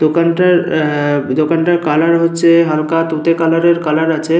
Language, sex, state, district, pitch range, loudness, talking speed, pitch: Bengali, male, West Bengal, Paschim Medinipur, 155-170 Hz, -13 LUFS, 135 wpm, 165 Hz